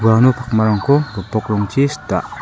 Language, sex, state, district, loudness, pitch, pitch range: Garo, male, Meghalaya, South Garo Hills, -16 LUFS, 110 Hz, 105-135 Hz